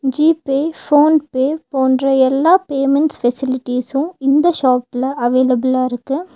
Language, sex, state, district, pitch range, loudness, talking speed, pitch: Tamil, female, Tamil Nadu, Nilgiris, 255-295 Hz, -15 LUFS, 115 wpm, 270 Hz